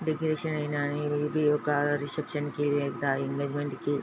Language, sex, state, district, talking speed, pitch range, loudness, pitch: Telugu, female, Andhra Pradesh, Srikakulam, 135 wpm, 145-150 Hz, -29 LUFS, 145 Hz